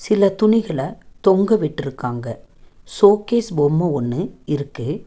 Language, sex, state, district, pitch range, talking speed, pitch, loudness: Tamil, female, Tamil Nadu, Nilgiris, 130-205 Hz, 95 wpm, 150 Hz, -19 LUFS